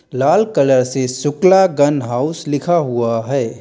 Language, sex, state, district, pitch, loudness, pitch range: Hindi, male, Uttar Pradesh, Lalitpur, 145 Hz, -15 LUFS, 130-165 Hz